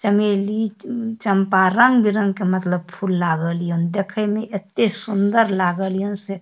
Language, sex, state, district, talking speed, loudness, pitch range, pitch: Maithili, female, Bihar, Darbhanga, 150 wpm, -19 LUFS, 185-215 Hz, 200 Hz